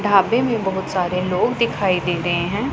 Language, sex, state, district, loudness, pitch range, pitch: Hindi, female, Punjab, Pathankot, -19 LUFS, 180-230 Hz, 190 Hz